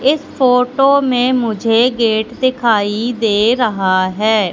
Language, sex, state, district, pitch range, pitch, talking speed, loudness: Hindi, female, Madhya Pradesh, Katni, 215-255 Hz, 235 Hz, 120 wpm, -14 LUFS